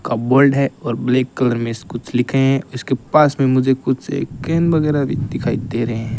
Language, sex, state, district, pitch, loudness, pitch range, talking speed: Hindi, male, Rajasthan, Bikaner, 130 Hz, -18 LUFS, 120-140 Hz, 215 wpm